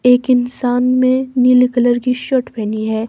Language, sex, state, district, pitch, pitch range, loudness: Hindi, female, Himachal Pradesh, Shimla, 250 Hz, 245-255 Hz, -15 LUFS